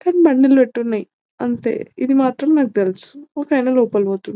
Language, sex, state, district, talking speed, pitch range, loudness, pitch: Telugu, female, Telangana, Nalgonda, 195 wpm, 230-285 Hz, -17 LUFS, 260 Hz